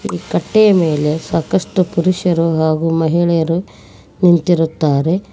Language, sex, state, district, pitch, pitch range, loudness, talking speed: Kannada, female, Karnataka, Koppal, 165 Hz, 160-180 Hz, -15 LUFS, 80 wpm